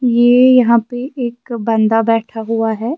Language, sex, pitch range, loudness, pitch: Urdu, female, 225-245 Hz, -14 LUFS, 235 Hz